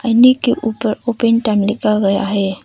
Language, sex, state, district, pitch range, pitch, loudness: Hindi, female, Arunachal Pradesh, Papum Pare, 205-235 Hz, 220 Hz, -15 LUFS